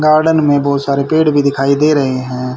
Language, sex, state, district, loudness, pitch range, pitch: Hindi, male, Haryana, Rohtak, -13 LUFS, 140-155 Hz, 140 Hz